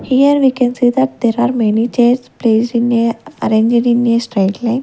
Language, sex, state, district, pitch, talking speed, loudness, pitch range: English, female, Punjab, Kapurthala, 240 Hz, 210 wpm, -14 LUFS, 230-250 Hz